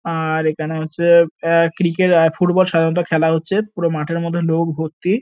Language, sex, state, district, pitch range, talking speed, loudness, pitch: Bengali, male, West Bengal, North 24 Parganas, 160-175 Hz, 170 wpm, -17 LUFS, 165 Hz